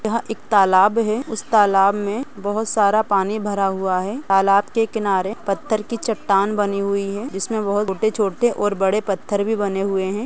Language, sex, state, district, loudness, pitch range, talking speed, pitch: Hindi, female, Chhattisgarh, Rajnandgaon, -19 LUFS, 195-220 Hz, 185 wpm, 205 Hz